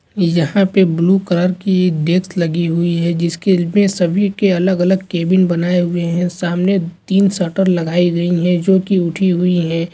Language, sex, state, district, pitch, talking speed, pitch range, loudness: Hindi, male, Andhra Pradesh, Chittoor, 180 Hz, 200 wpm, 170-190 Hz, -15 LUFS